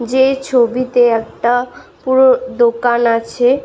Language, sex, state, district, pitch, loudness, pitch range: Bengali, female, West Bengal, Malda, 245 Hz, -14 LUFS, 235-260 Hz